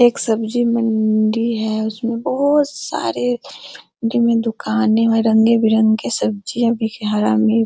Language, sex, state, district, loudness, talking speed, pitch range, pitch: Hindi, female, Bihar, Araria, -17 LUFS, 135 wpm, 220-235 Hz, 225 Hz